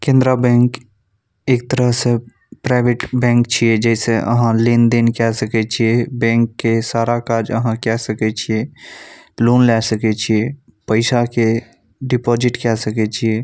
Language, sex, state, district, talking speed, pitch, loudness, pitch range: Maithili, male, Bihar, Saharsa, 145 wpm, 115 Hz, -16 LUFS, 115-120 Hz